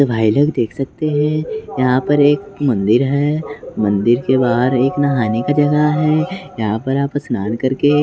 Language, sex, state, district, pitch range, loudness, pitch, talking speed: Hindi, male, Bihar, West Champaran, 125-150 Hz, -16 LUFS, 140 Hz, 180 wpm